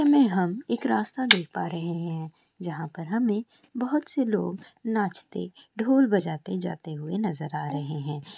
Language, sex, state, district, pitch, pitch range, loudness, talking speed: Hindi, female, West Bengal, Jalpaiguri, 190 Hz, 165-230 Hz, -27 LUFS, 155 wpm